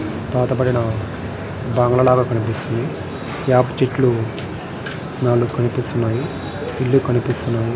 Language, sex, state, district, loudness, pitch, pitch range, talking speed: Telugu, male, Andhra Pradesh, Srikakulam, -20 LUFS, 120 Hz, 115-130 Hz, 70 wpm